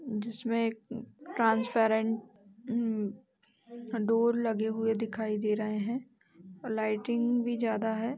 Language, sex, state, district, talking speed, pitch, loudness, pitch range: Hindi, female, Uttar Pradesh, Jalaun, 110 wpm, 225 Hz, -31 LUFS, 215-235 Hz